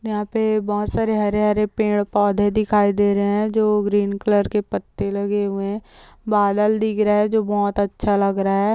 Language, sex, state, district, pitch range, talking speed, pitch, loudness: Hindi, female, Uttarakhand, Tehri Garhwal, 205-215 Hz, 200 wpm, 205 Hz, -20 LUFS